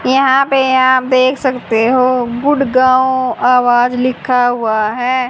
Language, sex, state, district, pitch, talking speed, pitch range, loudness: Hindi, female, Haryana, Jhajjar, 255 Hz, 125 wpm, 245-260 Hz, -12 LUFS